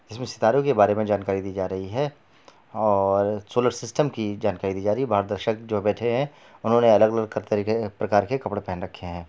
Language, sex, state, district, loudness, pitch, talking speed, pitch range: Bhojpuri, male, Bihar, Saran, -24 LUFS, 105 Hz, 220 wpm, 100-120 Hz